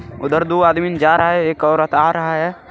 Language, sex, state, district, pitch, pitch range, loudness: Hindi, male, Jharkhand, Garhwa, 165 Hz, 155-170 Hz, -15 LUFS